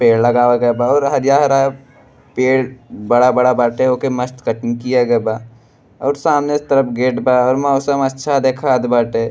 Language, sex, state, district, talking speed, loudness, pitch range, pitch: Bhojpuri, male, Uttar Pradesh, Deoria, 160 wpm, -15 LUFS, 120-135 Hz, 125 Hz